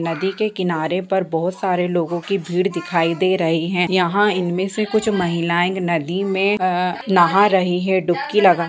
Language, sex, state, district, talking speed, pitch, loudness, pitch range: Hindi, female, Bihar, Purnia, 180 wpm, 180 Hz, -19 LUFS, 175-190 Hz